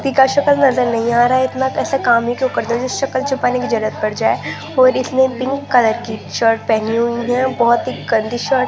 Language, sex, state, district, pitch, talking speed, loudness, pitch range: Hindi, female, Rajasthan, Jaipur, 250 Hz, 220 wpm, -16 LUFS, 235-260 Hz